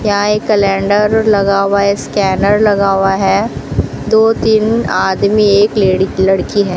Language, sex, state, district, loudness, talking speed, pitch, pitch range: Hindi, female, Rajasthan, Bikaner, -12 LUFS, 150 wpm, 200 Hz, 195-210 Hz